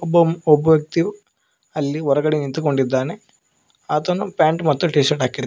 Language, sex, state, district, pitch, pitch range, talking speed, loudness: Kannada, male, Karnataka, Koppal, 155 Hz, 145-170 Hz, 130 wpm, -19 LUFS